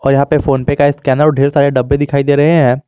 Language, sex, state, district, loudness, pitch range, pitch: Hindi, male, Jharkhand, Garhwa, -12 LUFS, 135-145 Hz, 140 Hz